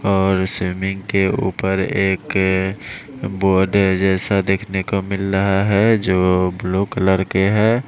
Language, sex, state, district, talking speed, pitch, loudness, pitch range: Hindi, male, Maharashtra, Mumbai Suburban, 130 wpm, 95 Hz, -18 LUFS, 95-100 Hz